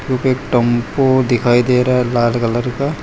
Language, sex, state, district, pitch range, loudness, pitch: Hindi, male, Gujarat, Valsad, 120-130 Hz, -15 LUFS, 125 Hz